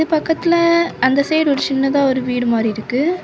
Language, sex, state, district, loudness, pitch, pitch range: Tamil, female, Tamil Nadu, Kanyakumari, -16 LUFS, 280 Hz, 260-325 Hz